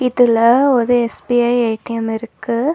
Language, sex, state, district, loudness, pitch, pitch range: Tamil, female, Tamil Nadu, Nilgiris, -15 LUFS, 240 Hz, 230-245 Hz